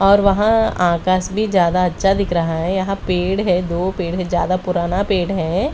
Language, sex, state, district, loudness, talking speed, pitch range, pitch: Hindi, female, Delhi, New Delhi, -17 LUFS, 200 wpm, 175-195 Hz, 185 Hz